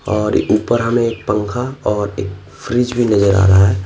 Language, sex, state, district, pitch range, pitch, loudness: Hindi, male, Bihar, Patna, 100-120 Hz, 105 Hz, -15 LUFS